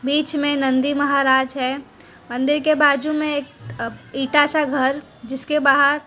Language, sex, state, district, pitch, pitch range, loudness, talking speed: Hindi, female, Gujarat, Valsad, 285 Hz, 265-295 Hz, -19 LUFS, 160 wpm